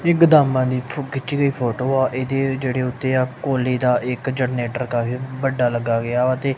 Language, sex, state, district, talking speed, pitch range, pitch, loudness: Punjabi, male, Punjab, Kapurthala, 190 wpm, 125-135 Hz, 130 Hz, -20 LUFS